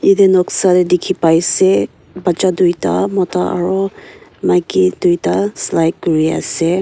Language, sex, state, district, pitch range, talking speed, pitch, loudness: Nagamese, female, Nagaland, Kohima, 165-185 Hz, 130 wpm, 180 Hz, -14 LUFS